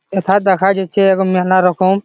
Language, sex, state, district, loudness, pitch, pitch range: Bengali, male, West Bengal, Jhargram, -13 LUFS, 190 Hz, 185-195 Hz